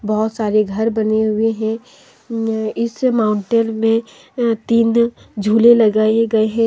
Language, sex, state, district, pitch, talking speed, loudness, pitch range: Hindi, female, Jharkhand, Deoghar, 225 Hz, 145 wpm, -16 LUFS, 215-230 Hz